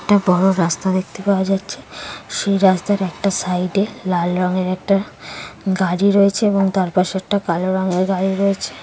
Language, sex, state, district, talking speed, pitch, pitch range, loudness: Bengali, female, West Bengal, Kolkata, 155 wpm, 190 Hz, 185-200 Hz, -18 LUFS